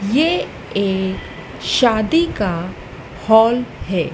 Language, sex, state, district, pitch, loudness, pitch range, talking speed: Hindi, female, Madhya Pradesh, Dhar, 205 Hz, -17 LUFS, 190-240 Hz, 85 wpm